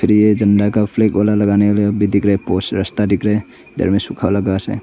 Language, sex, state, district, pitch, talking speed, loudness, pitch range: Hindi, male, Arunachal Pradesh, Longding, 105 Hz, 250 wpm, -15 LUFS, 100-105 Hz